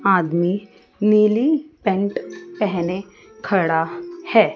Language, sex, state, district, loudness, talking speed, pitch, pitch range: Hindi, female, Chandigarh, Chandigarh, -20 LUFS, 80 wpm, 205 Hz, 185-295 Hz